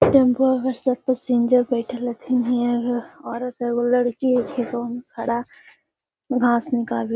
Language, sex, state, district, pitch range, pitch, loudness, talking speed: Magahi, female, Bihar, Gaya, 240-255 Hz, 245 Hz, -22 LUFS, 150 wpm